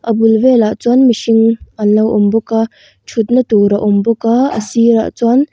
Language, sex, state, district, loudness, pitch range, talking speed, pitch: Mizo, female, Mizoram, Aizawl, -12 LUFS, 215-235 Hz, 205 wpm, 225 Hz